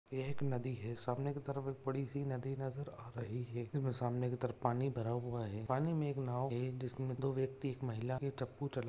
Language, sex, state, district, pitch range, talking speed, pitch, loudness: Hindi, male, Maharashtra, Aurangabad, 125-135 Hz, 225 wpm, 130 Hz, -40 LUFS